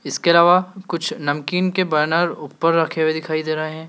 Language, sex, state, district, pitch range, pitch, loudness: Hindi, male, Madhya Pradesh, Dhar, 155-180 Hz, 165 Hz, -19 LUFS